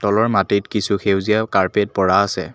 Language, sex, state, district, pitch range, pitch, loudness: Assamese, male, Assam, Kamrup Metropolitan, 100-105 Hz, 100 Hz, -18 LUFS